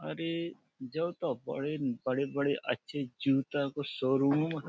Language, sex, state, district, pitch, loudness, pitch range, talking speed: Hindi, male, Uttar Pradesh, Budaun, 140 Hz, -33 LUFS, 135-155 Hz, 140 wpm